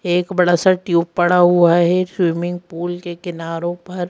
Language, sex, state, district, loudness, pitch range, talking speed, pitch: Hindi, female, Madhya Pradesh, Bhopal, -17 LUFS, 175-180 Hz, 175 wpm, 175 Hz